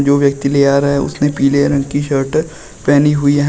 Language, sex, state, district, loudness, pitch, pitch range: Hindi, male, Uttar Pradesh, Shamli, -14 LUFS, 140 Hz, 140-145 Hz